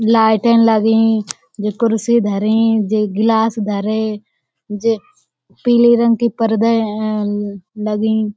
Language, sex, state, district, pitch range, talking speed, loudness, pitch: Hindi, female, Uttar Pradesh, Budaun, 210-225 Hz, 105 wpm, -15 LUFS, 220 Hz